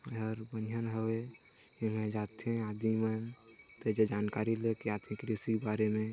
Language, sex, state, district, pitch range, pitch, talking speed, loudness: Hindi, male, Chhattisgarh, Sarguja, 110-115 Hz, 110 Hz, 155 wpm, -36 LUFS